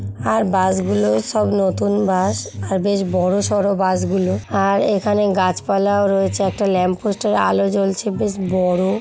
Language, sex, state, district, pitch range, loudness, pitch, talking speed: Bengali, female, West Bengal, Jhargram, 185-200 Hz, -18 LUFS, 195 Hz, 175 wpm